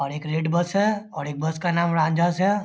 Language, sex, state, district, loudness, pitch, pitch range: Hindi, male, Bihar, Lakhisarai, -23 LUFS, 170 Hz, 160-195 Hz